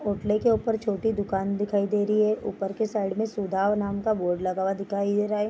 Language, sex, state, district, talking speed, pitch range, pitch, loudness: Hindi, female, Bihar, Bhagalpur, 240 wpm, 195-215 Hz, 205 Hz, -26 LUFS